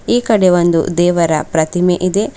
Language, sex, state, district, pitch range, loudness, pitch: Kannada, female, Karnataka, Bidar, 165-195 Hz, -13 LUFS, 175 Hz